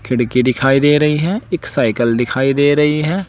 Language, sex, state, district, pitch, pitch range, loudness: Hindi, male, Uttar Pradesh, Saharanpur, 145 Hz, 125-150 Hz, -14 LUFS